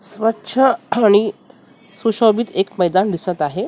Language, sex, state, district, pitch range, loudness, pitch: Marathi, female, Maharashtra, Mumbai Suburban, 190-225 Hz, -17 LUFS, 215 Hz